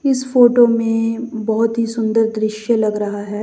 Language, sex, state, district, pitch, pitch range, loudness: Hindi, female, Chandigarh, Chandigarh, 225 Hz, 215-235 Hz, -16 LUFS